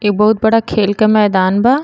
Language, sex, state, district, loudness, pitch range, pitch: Bhojpuri, female, Uttar Pradesh, Gorakhpur, -12 LUFS, 205-220 Hz, 215 Hz